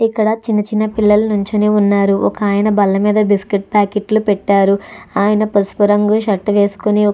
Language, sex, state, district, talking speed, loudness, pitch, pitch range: Telugu, female, Andhra Pradesh, Chittoor, 150 wpm, -14 LUFS, 210 Hz, 200-215 Hz